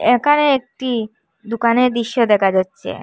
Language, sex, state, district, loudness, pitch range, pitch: Bengali, female, Assam, Hailakandi, -17 LUFS, 225-260 Hz, 240 Hz